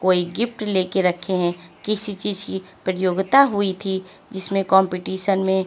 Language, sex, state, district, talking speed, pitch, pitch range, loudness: Hindi, female, Chhattisgarh, Raipur, 150 wpm, 190 Hz, 185-200 Hz, -21 LUFS